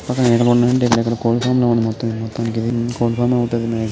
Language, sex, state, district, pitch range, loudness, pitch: Telugu, male, Andhra Pradesh, Chittoor, 115-120 Hz, -17 LUFS, 120 Hz